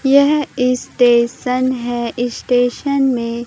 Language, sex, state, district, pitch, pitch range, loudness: Hindi, female, Bihar, Katihar, 250 Hz, 240-265 Hz, -16 LUFS